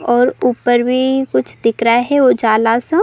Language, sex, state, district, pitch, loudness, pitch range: Bhojpuri, female, Bihar, Saran, 245 Hz, -14 LUFS, 230-260 Hz